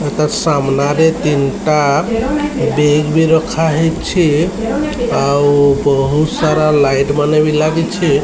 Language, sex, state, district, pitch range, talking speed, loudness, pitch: Odia, male, Odisha, Sambalpur, 145-165 Hz, 100 wpm, -13 LUFS, 155 Hz